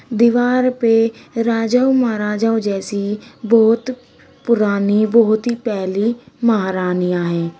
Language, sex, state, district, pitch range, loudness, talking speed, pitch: Hindi, female, Uttar Pradesh, Shamli, 205-235 Hz, -17 LUFS, 95 wpm, 225 Hz